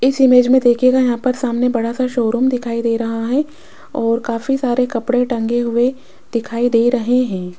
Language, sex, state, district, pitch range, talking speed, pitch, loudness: Hindi, female, Rajasthan, Jaipur, 230-255 Hz, 190 wpm, 245 Hz, -16 LUFS